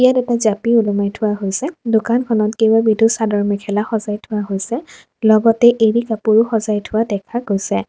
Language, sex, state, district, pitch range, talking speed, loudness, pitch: Assamese, female, Assam, Kamrup Metropolitan, 205-230 Hz, 145 wpm, -16 LUFS, 220 Hz